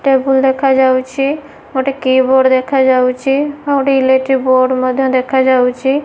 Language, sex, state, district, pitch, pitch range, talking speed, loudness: Odia, female, Odisha, Nuapada, 265 Hz, 260-270 Hz, 140 wpm, -13 LUFS